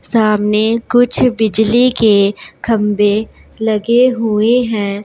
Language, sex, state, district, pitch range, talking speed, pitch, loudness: Hindi, female, Punjab, Pathankot, 210-235 Hz, 95 wpm, 220 Hz, -13 LUFS